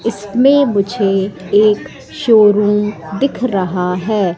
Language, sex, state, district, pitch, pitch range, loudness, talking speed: Hindi, female, Madhya Pradesh, Katni, 205 Hz, 195-225 Hz, -14 LUFS, 95 wpm